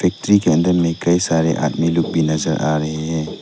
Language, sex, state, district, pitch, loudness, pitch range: Hindi, male, Arunachal Pradesh, Lower Dibang Valley, 80 Hz, -17 LUFS, 80-85 Hz